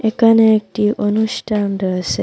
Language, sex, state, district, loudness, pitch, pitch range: Bengali, female, Assam, Hailakandi, -16 LUFS, 210 Hz, 195-220 Hz